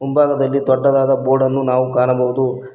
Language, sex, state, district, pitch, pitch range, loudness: Kannada, male, Karnataka, Koppal, 130 Hz, 130-135 Hz, -15 LUFS